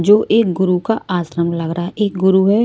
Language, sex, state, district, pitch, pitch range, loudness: Hindi, female, Maharashtra, Mumbai Suburban, 190 Hz, 175-210 Hz, -16 LUFS